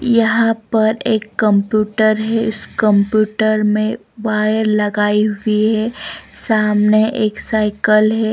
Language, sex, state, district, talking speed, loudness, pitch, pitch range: Hindi, female, Bihar, West Champaran, 115 wpm, -15 LUFS, 215 Hz, 210-220 Hz